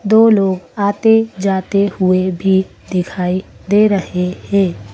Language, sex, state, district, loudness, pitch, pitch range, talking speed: Hindi, female, Madhya Pradesh, Bhopal, -15 LUFS, 190 Hz, 185-205 Hz, 110 wpm